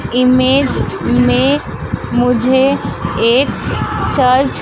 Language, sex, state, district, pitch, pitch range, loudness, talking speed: Hindi, female, Madhya Pradesh, Dhar, 255 Hz, 250-270 Hz, -14 LUFS, 80 wpm